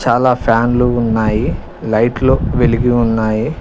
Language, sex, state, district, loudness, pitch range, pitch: Telugu, male, Telangana, Mahabubabad, -14 LUFS, 110-125 Hz, 120 Hz